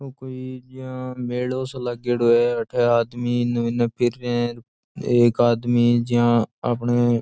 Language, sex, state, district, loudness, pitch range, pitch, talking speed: Rajasthani, male, Rajasthan, Churu, -21 LUFS, 120-125 Hz, 120 Hz, 150 wpm